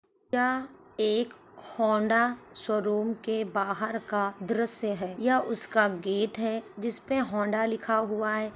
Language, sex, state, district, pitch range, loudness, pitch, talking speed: Hindi, female, Uttar Pradesh, Ghazipur, 210-230 Hz, -28 LUFS, 220 Hz, 125 wpm